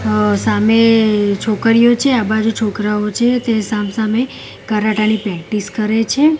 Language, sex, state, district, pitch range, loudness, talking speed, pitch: Gujarati, female, Gujarat, Gandhinagar, 210-230 Hz, -15 LUFS, 150 wpm, 215 Hz